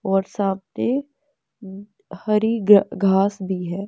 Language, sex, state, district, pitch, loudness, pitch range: Hindi, female, Bihar, West Champaran, 200 Hz, -20 LUFS, 195-210 Hz